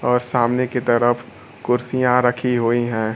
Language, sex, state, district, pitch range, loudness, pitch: Hindi, male, Bihar, Kaimur, 120-125 Hz, -19 LUFS, 125 Hz